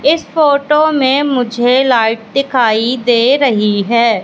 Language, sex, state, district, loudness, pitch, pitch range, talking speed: Hindi, female, Madhya Pradesh, Katni, -12 LUFS, 250 Hz, 230-280 Hz, 125 wpm